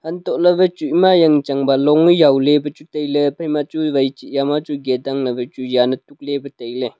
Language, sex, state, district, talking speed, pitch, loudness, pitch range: Wancho, male, Arunachal Pradesh, Longding, 215 wpm, 145 Hz, -17 LUFS, 135-155 Hz